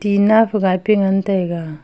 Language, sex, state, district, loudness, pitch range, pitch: Wancho, female, Arunachal Pradesh, Longding, -16 LUFS, 185-210 Hz, 195 Hz